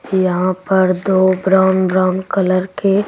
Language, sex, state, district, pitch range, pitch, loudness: Hindi, female, Delhi, New Delhi, 185-190 Hz, 185 Hz, -15 LUFS